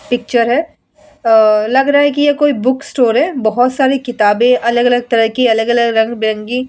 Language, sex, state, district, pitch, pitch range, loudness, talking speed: Hindi, female, Bihar, Vaishali, 245 Hz, 225-265 Hz, -13 LUFS, 190 wpm